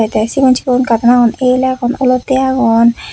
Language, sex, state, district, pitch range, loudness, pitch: Chakma, female, Tripura, West Tripura, 235-260 Hz, -12 LUFS, 250 Hz